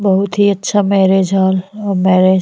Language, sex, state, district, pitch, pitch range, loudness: Bhojpuri, female, Uttar Pradesh, Ghazipur, 195 Hz, 190-200 Hz, -13 LUFS